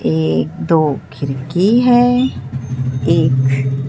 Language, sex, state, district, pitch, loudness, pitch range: Hindi, female, Bihar, Katihar, 135 Hz, -15 LUFS, 130-165 Hz